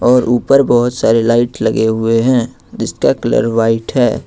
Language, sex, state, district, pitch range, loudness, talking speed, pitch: Hindi, male, Jharkhand, Ranchi, 115-125 Hz, -13 LUFS, 170 wpm, 120 Hz